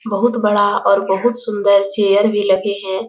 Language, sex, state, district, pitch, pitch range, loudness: Hindi, female, Bihar, Jahanabad, 205 Hz, 200-215 Hz, -15 LUFS